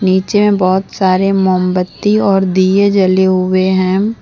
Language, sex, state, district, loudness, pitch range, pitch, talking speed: Hindi, female, Jharkhand, Deoghar, -12 LUFS, 185-195 Hz, 190 Hz, 140 wpm